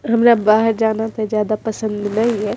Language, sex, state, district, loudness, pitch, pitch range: Maithili, female, Bihar, Madhepura, -17 LUFS, 220 Hz, 215-225 Hz